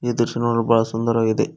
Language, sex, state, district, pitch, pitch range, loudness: Kannada, male, Karnataka, Koppal, 115 Hz, 115-120 Hz, -20 LUFS